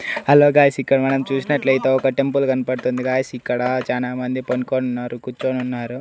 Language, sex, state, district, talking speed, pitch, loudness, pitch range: Telugu, male, Andhra Pradesh, Annamaya, 140 wpm, 130 Hz, -19 LUFS, 125-135 Hz